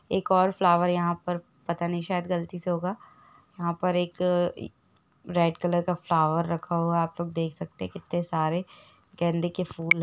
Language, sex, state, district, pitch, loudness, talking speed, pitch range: Hindi, female, Jharkhand, Jamtara, 175 Hz, -27 LUFS, 185 wpm, 170-180 Hz